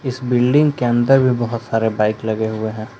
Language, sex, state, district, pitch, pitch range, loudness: Hindi, male, Jharkhand, Palamu, 120 Hz, 110-130 Hz, -17 LUFS